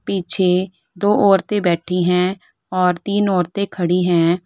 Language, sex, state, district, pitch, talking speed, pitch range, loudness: Hindi, female, Uttar Pradesh, Lalitpur, 180 Hz, 120 wpm, 180-195 Hz, -18 LUFS